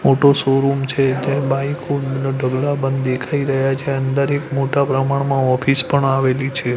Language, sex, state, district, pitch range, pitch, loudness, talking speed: Gujarati, male, Gujarat, Gandhinagar, 135-140 Hz, 135 Hz, -17 LUFS, 160 wpm